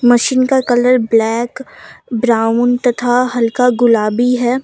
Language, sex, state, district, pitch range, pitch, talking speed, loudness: Hindi, female, Jharkhand, Deoghar, 235-250 Hz, 245 Hz, 115 wpm, -13 LUFS